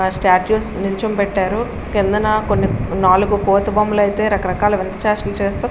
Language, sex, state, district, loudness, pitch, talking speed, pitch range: Telugu, female, Andhra Pradesh, Srikakulam, -17 LUFS, 205 Hz, 160 wpm, 195-210 Hz